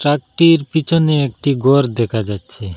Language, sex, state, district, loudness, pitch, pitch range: Bengali, male, Assam, Hailakandi, -15 LUFS, 140 Hz, 115-155 Hz